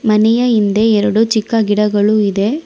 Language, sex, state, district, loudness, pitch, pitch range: Kannada, female, Karnataka, Bangalore, -13 LUFS, 215 Hz, 205-225 Hz